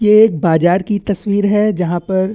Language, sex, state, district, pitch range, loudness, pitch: Hindi, male, Chhattisgarh, Bastar, 180-210 Hz, -14 LUFS, 200 Hz